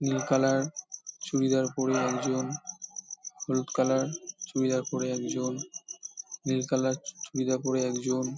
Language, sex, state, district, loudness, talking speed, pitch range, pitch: Bengali, male, West Bengal, Paschim Medinipur, -30 LUFS, 105 wpm, 130-175 Hz, 130 Hz